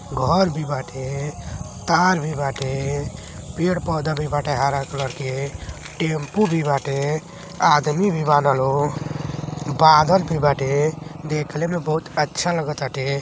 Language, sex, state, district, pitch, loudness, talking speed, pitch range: Hindi, male, Uttar Pradesh, Deoria, 150 Hz, -21 LUFS, 125 wpm, 140-160 Hz